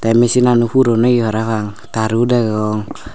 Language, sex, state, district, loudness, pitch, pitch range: Chakma, male, Tripura, Unakoti, -15 LUFS, 115 Hz, 110-120 Hz